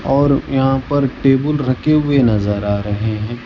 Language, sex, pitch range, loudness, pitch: Hindi, male, 110-140 Hz, -16 LUFS, 135 Hz